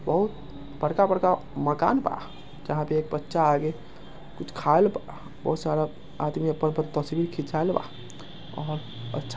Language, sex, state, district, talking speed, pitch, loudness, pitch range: Angika, male, Bihar, Samastipur, 95 wpm, 155 Hz, -27 LUFS, 145-160 Hz